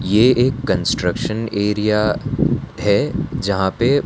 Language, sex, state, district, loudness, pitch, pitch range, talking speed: Hindi, male, Gujarat, Valsad, -18 LUFS, 105 Hz, 100-130 Hz, 105 wpm